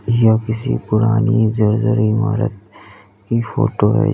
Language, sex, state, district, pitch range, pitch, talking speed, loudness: Hindi, male, Uttar Pradesh, Lalitpur, 110-115 Hz, 110 Hz, 115 wpm, -16 LUFS